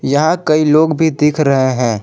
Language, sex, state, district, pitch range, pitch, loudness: Hindi, male, Jharkhand, Palamu, 135-155 Hz, 150 Hz, -13 LUFS